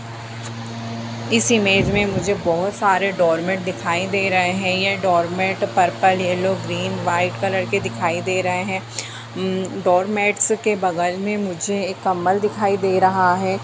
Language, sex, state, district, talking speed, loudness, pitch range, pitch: Hindi, female, Bihar, Jamui, 165 wpm, -19 LUFS, 175-195 Hz, 185 Hz